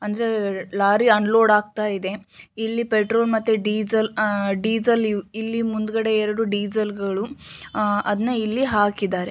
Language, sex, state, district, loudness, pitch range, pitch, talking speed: Kannada, female, Karnataka, Shimoga, -21 LUFS, 205-225 Hz, 215 Hz, 115 wpm